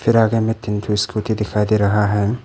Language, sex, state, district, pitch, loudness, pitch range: Hindi, male, Arunachal Pradesh, Papum Pare, 105 Hz, -18 LUFS, 105-110 Hz